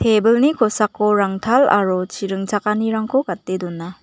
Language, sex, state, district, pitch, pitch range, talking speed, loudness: Garo, female, Meghalaya, West Garo Hills, 210 Hz, 190-220 Hz, 120 wpm, -18 LUFS